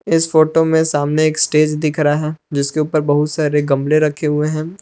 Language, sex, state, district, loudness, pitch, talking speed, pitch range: Hindi, male, Jharkhand, Palamu, -16 LUFS, 155 Hz, 210 wpm, 150-155 Hz